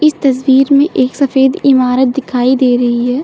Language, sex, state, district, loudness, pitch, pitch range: Hindi, female, Uttar Pradesh, Lucknow, -11 LUFS, 265 Hz, 255-280 Hz